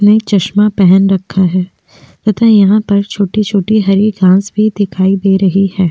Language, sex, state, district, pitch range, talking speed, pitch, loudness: Hindi, female, Uttar Pradesh, Jyotiba Phule Nagar, 190-210 Hz, 185 wpm, 200 Hz, -11 LUFS